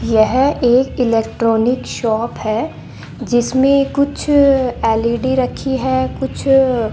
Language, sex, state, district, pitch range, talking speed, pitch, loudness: Hindi, female, Rajasthan, Bikaner, 230-270 Hz, 105 wpm, 250 Hz, -15 LUFS